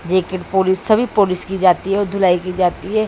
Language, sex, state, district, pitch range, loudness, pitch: Hindi, female, Bihar, Saran, 180-200 Hz, -17 LUFS, 190 Hz